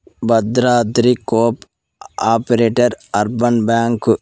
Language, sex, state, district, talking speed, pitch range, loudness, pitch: Telugu, male, Telangana, Mahabubabad, 85 wpm, 115-120 Hz, -15 LUFS, 115 Hz